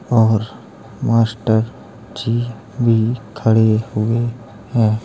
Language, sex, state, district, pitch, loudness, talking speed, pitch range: Hindi, male, Uttar Pradesh, Jalaun, 115 Hz, -18 LUFS, 85 wpm, 110-115 Hz